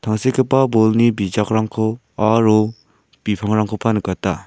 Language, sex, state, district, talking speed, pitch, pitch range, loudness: Garo, male, Meghalaya, South Garo Hills, 80 wpm, 110 Hz, 105-115 Hz, -17 LUFS